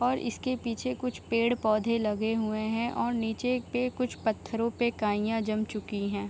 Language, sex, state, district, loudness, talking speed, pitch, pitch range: Hindi, female, Bihar, Saharsa, -30 LUFS, 180 wpm, 230 Hz, 215-245 Hz